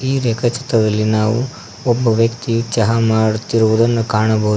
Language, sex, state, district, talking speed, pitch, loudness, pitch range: Kannada, male, Karnataka, Koppal, 120 wpm, 115 Hz, -16 LUFS, 110-120 Hz